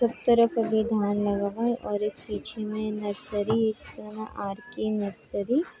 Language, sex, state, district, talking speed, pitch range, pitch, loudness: Hindi, female, Bihar, Muzaffarpur, 165 wpm, 205-230 Hz, 215 Hz, -28 LUFS